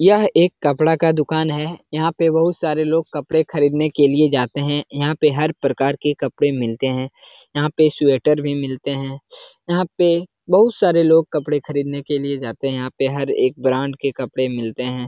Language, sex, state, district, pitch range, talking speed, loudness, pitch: Hindi, male, Uttar Pradesh, Jalaun, 135-160 Hz, 205 wpm, -18 LUFS, 145 Hz